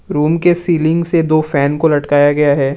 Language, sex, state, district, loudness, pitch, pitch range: Hindi, male, Assam, Kamrup Metropolitan, -13 LUFS, 155 Hz, 145-165 Hz